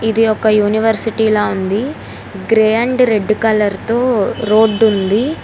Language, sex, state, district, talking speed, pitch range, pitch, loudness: Telugu, female, Telangana, Hyderabad, 130 wpm, 210-225 Hz, 220 Hz, -14 LUFS